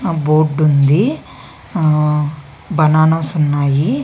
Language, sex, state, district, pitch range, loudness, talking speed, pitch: Telugu, female, Andhra Pradesh, Visakhapatnam, 145-155 Hz, -14 LUFS, 75 wpm, 155 Hz